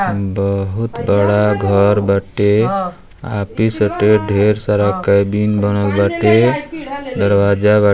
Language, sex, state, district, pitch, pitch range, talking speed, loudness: Bhojpuri, male, Uttar Pradesh, Deoria, 105 Hz, 100-110 Hz, 100 wpm, -15 LUFS